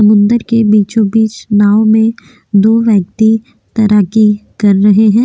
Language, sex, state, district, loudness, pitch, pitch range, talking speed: Hindi, female, Maharashtra, Aurangabad, -10 LUFS, 215 Hz, 205-225 Hz, 135 wpm